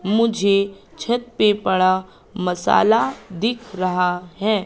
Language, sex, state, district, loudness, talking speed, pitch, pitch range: Hindi, female, Madhya Pradesh, Katni, -20 LUFS, 105 wpm, 200 Hz, 185-215 Hz